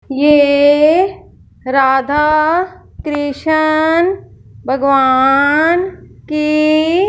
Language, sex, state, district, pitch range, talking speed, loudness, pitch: Hindi, female, Punjab, Fazilka, 285-320 Hz, 40 wpm, -12 LUFS, 300 Hz